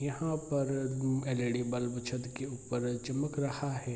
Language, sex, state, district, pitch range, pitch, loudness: Hindi, male, Bihar, Araria, 125-140 Hz, 130 Hz, -35 LUFS